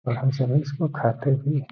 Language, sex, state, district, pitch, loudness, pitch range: Hindi, male, Bihar, Gaya, 135 Hz, -24 LUFS, 130-145 Hz